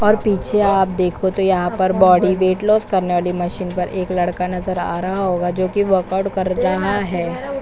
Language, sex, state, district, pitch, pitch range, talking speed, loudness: Hindi, female, Chhattisgarh, Korba, 185 Hz, 180-195 Hz, 210 wpm, -18 LUFS